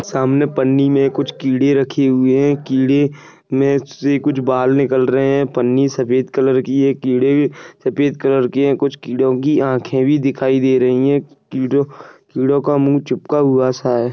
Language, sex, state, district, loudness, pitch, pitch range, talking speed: Hindi, male, Maharashtra, Nagpur, -16 LUFS, 135 Hz, 130-140 Hz, 185 wpm